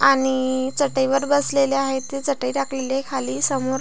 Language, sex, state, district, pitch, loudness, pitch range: Marathi, female, Maharashtra, Pune, 270 Hz, -21 LUFS, 265-275 Hz